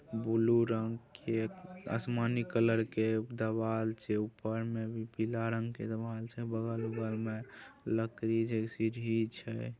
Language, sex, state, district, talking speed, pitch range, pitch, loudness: Maithili, male, Bihar, Saharsa, 140 wpm, 110-115 Hz, 115 Hz, -35 LUFS